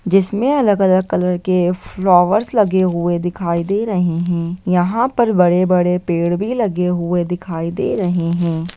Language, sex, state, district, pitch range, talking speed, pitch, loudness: Hindi, female, Bihar, Lakhisarai, 175-195 Hz, 150 wpm, 180 Hz, -16 LUFS